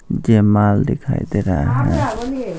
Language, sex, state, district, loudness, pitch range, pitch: Hindi, male, Bihar, Patna, -17 LUFS, 105-165 Hz, 115 Hz